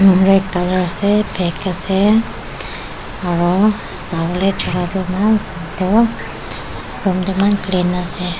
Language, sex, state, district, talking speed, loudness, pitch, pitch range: Nagamese, female, Nagaland, Dimapur, 120 wpm, -16 LUFS, 190 Hz, 180-200 Hz